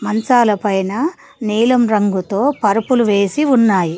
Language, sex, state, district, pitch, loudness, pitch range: Telugu, female, Telangana, Mahabubabad, 220 Hz, -15 LUFS, 200-250 Hz